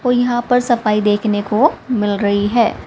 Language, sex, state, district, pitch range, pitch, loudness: Hindi, female, Haryana, Rohtak, 210-245 Hz, 230 Hz, -16 LUFS